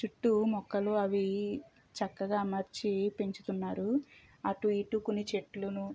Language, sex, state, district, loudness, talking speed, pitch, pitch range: Telugu, female, Andhra Pradesh, Chittoor, -34 LUFS, 110 wpm, 205 Hz, 200-215 Hz